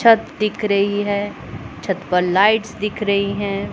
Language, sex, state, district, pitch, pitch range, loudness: Hindi, male, Punjab, Pathankot, 205 Hz, 200-210 Hz, -19 LUFS